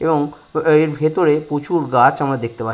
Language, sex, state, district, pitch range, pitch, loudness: Bengali, male, West Bengal, Purulia, 140-155 Hz, 150 Hz, -17 LUFS